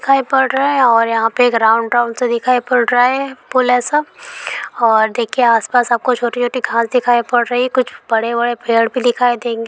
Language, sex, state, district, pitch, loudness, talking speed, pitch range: Hindi, female, Andhra Pradesh, Guntur, 245 Hz, -14 LUFS, 205 wpm, 230-255 Hz